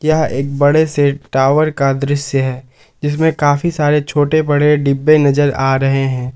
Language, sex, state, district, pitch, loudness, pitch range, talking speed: Hindi, male, Jharkhand, Palamu, 145 Hz, -14 LUFS, 135-150 Hz, 170 wpm